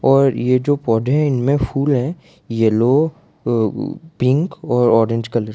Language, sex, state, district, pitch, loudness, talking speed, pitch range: Hindi, male, Gujarat, Valsad, 130 Hz, -17 LUFS, 140 wpm, 115-145 Hz